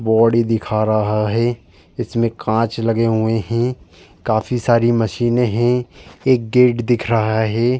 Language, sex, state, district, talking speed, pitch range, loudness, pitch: Hindi, male, Uttar Pradesh, Jalaun, 140 wpm, 110-120 Hz, -17 LUFS, 115 Hz